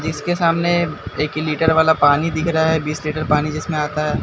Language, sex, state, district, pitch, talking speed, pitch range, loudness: Hindi, male, Bihar, Katihar, 155 Hz, 215 wpm, 150-160 Hz, -18 LUFS